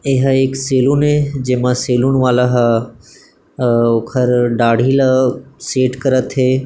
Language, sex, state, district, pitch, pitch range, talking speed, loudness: Chhattisgarhi, male, Chhattisgarh, Bilaspur, 130 Hz, 125-135 Hz, 155 wpm, -14 LUFS